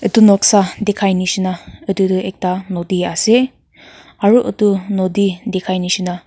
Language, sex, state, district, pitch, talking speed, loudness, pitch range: Nagamese, female, Nagaland, Kohima, 190 Hz, 145 wpm, -15 LUFS, 185-205 Hz